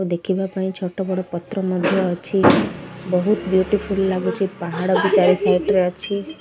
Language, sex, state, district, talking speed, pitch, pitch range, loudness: Odia, female, Odisha, Malkangiri, 150 wpm, 185 Hz, 180-195 Hz, -20 LUFS